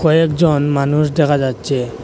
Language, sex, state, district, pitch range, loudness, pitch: Bengali, male, Assam, Hailakandi, 140-155 Hz, -15 LUFS, 145 Hz